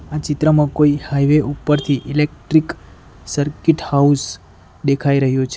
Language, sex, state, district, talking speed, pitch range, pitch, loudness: Gujarati, male, Gujarat, Valsad, 120 wpm, 140-150 Hz, 145 Hz, -17 LUFS